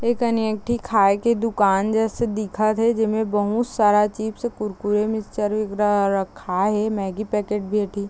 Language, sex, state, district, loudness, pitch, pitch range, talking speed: Chhattisgarhi, female, Chhattisgarh, Raigarh, -21 LUFS, 210 Hz, 205-220 Hz, 155 wpm